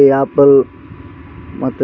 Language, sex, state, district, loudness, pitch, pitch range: Kannada, male, Karnataka, Raichur, -12 LUFS, 90 Hz, 90-135 Hz